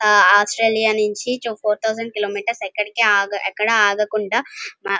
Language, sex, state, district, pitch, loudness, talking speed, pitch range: Telugu, female, Andhra Pradesh, Krishna, 210 Hz, -18 LUFS, 145 wpm, 205-225 Hz